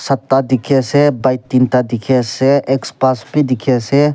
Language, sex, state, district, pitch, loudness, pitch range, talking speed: Nagamese, male, Nagaland, Kohima, 130 Hz, -14 LUFS, 125-140 Hz, 115 wpm